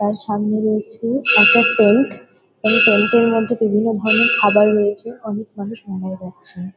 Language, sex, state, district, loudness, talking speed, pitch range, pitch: Bengali, female, West Bengal, Kolkata, -15 LUFS, 150 wpm, 205-230 Hz, 215 Hz